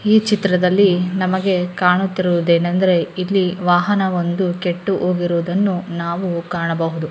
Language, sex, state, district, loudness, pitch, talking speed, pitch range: Kannada, female, Karnataka, Mysore, -17 LUFS, 180 Hz, 100 wpm, 175-190 Hz